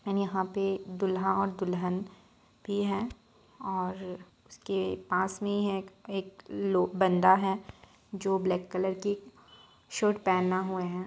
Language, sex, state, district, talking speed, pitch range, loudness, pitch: Hindi, female, Uttar Pradesh, Budaun, 130 wpm, 185-195 Hz, -30 LUFS, 190 Hz